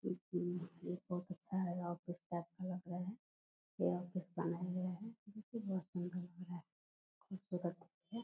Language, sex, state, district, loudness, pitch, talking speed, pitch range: Hindi, female, Bihar, Purnia, -44 LUFS, 180 Hz, 100 wpm, 175-185 Hz